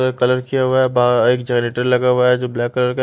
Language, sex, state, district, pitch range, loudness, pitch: Hindi, male, Bihar, Kaimur, 125-130 Hz, -16 LUFS, 125 Hz